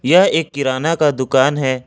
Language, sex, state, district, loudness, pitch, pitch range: Hindi, male, Jharkhand, Ranchi, -15 LUFS, 135 Hz, 130-150 Hz